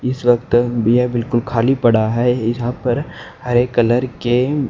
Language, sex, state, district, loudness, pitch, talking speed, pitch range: Hindi, male, Haryana, Jhajjar, -17 LUFS, 120 Hz, 155 wpm, 120-125 Hz